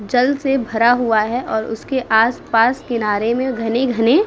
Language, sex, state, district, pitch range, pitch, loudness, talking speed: Hindi, female, Uttar Pradesh, Muzaffarnagar, 225-260 Hz, 235 Hz, -17 LUFS, 180 wpm